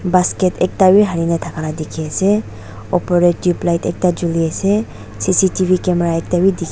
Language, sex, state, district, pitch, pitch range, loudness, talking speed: Nagamese, female, Nagaland, Dimapur, 175 Hz, 165-185 Hz, -16 LUFS, 160 wpm